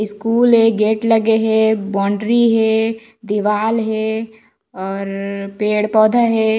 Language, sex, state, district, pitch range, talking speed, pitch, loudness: Chhattisgarhi, female, Chhattisgarh, Raigarh, 210-225 Hz, 110 wpm, 220 Hz, -16 LUFS